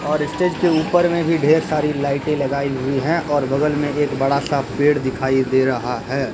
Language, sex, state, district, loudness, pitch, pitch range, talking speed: Hindi, male, Bihar, Begusarai, -19 LUFS, 145 Hz, 135-155 Hz, 200 wpm